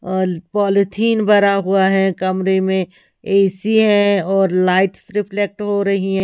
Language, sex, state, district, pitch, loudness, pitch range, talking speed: Hindi, female, Haryana, Rohtak, 195 Hz, -16 LUFS, 190-205 Hz, 145 wpm